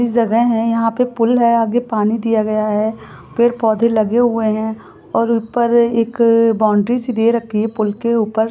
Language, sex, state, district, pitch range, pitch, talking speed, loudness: Hindi, female, Jharkhand, Sahebganj, 220-235 Hz, 230 Hz, 205 wpm, -16 LUFS